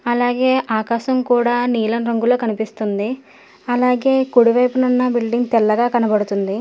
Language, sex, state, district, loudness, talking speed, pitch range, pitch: Telugu, female, Telangana, Hyderabad, -17 LUFS, 100 wpm, 225-250 Hz, 240 Hz